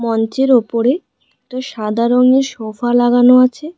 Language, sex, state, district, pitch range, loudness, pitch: Bengali, female, West Bengal, Alipurduar, 230-255 Hz, -14 LUFS, 245 Hz